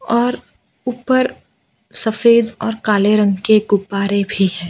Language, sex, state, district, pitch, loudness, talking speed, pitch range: Hindi, female, Gujarat, Valsad, 215 Hz, -16 LUFS, 130 wpm, 200-235 Hz